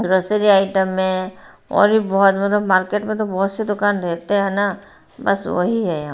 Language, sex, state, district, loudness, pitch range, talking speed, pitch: Hindi, female, Bihar, Katihar, -18 LUFS, 190-205 Hz, 195 wpm, 195 Hz